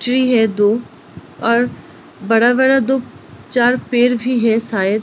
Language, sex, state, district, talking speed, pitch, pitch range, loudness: Hindi, female, Bihar, Gopalganj, 130 wpm, 240 Hz, 225-250 Hz, -15 LUFS